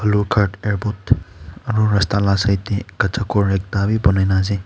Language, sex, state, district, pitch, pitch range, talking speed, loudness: Nagamese, male, Nagaland, Kohima, 100 Hz, 95-105 Hz, 165 wpm, -18 LUFS